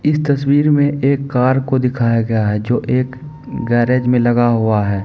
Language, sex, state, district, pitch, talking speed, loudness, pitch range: Maithili, male, Bihar, Supaul, 125 Hz, 190 wpm, -15 LUFS, 120-140 Hz